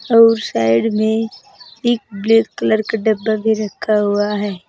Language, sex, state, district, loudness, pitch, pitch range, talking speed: Hindi, female, Uttar Pradesh, Saharanpur, -16 LUFS, 220 Hz, 205-225 Hz, 155 wpm